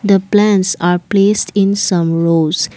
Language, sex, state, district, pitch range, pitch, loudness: English, female, Assam, Kamrup Metropolitan, 170-205 Hz, 190 Hz, -13 LUFS